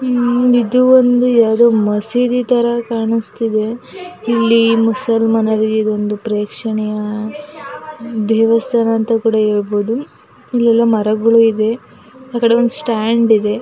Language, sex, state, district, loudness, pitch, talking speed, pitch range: Kannada, female, Karnataka, Mysore, -14 LUFS, 230 Hz, 100 wpm, 220-240 Hz